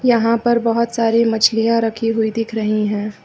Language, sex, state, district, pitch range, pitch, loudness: Hindi, female, Uttar Pradesh, Lucknow, 220-230 Hz, 225 Hz, -17 LUFS